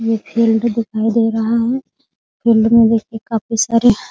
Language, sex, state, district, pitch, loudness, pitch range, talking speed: Hindi, female, Bihar, Muzaffarpur, 230 Hz, -15 LUFS, 225-235 Hz, 175 wpm